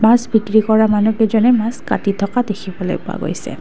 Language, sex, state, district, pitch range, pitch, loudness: Assamese, female, Assam, Kamrup Metropolitan, 205-230 Hz, 220 Hz, -16 LUFS